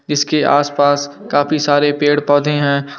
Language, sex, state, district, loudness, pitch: Hindi, male, Bihar, Muzaffarpur, -14 LUFS, 145 Hz